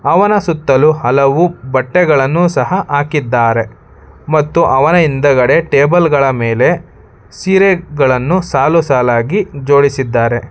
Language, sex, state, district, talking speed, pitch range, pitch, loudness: Kannada, male, Karnataka, Bangalore, 95 wpm, 130-170 Hz, 145 Hz, -12 LUFS